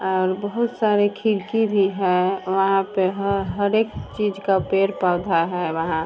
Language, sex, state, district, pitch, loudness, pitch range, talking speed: Hindi, female, Bihar, Vaishali, 195 Hz, -21 LUFS, 185-205 Hz, 160 wpm